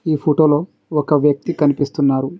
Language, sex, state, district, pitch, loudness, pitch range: Telugu, male, Telangana, Mahabubabad, 150 Hz, -17 LUFS, 145-155 Hz